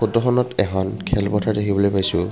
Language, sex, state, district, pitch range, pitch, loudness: Assamese, male, Assam, Kamrup Metropolitan, 95-110 Hz, 100 Hz, -20 LUFS